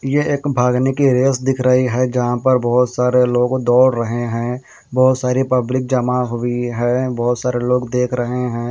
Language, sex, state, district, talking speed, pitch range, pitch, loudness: Hindi, male, Haryana, Jhajjar, 195 wpm, 120-130 Hz, 125 Hz, -17 LUFS